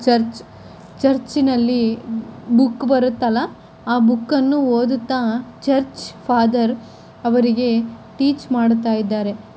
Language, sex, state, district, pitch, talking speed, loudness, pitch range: Kannada, female, Karnataka, Chamarajanagar, 240 Hz, 95 wpm, -18 LUFS, 230-260 Hz